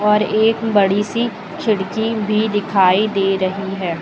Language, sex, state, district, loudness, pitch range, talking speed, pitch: Hindi, female, Uttar Pradesh, Lucknow, -17 LUFS, 195-220 Hz, 150 wpm, 210 Hz